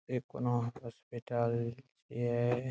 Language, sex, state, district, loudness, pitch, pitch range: Maithili, male, Bihar, Saharsa, -36 LUFS, 120 Hz, 120-125 Hz